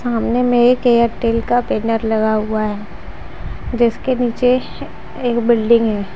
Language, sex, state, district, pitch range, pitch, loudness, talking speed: Hindi, female, Jharkhand, Deoghar, 215-245 Hz, 230 Hz, -16 LUFS, 135 wpm